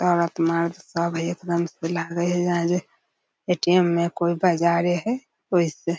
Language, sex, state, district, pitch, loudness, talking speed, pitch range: Maithili, female, Bihar, Darbhanga, 170 Hz, -23 LUFS, 130 wpm, 170-175 Hz